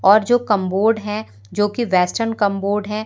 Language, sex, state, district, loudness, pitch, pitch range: Hindi, female, Madhya Pradesh, Umaria, -18 LUFS, 210 Hz, 195-220 Hz